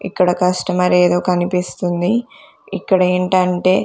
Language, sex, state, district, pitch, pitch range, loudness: Telugu, female, Andhra Pradesh, Sri Satya Sai, 180 Hz, 180-185 Hz, -16 LUFS